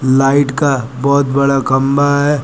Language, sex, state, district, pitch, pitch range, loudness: Hindi, male, Uttar Pradesh, Lucknow, 140 Hz, 135-145 Hz, -13 LUFS